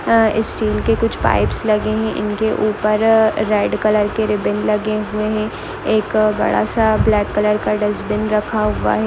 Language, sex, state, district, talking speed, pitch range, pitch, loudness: Hindi, female, Chhattisgarh, Sarguja, 170 wpm, 210-220 Hz, 215 Hz, -17 LUFS